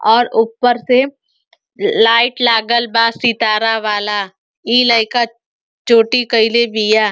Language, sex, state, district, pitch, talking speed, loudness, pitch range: Bhojpuri, female, Uttar Pradesh, Ghazipur, 230 Hz, 110 wpm, -13 LUFS, 220-240 Hz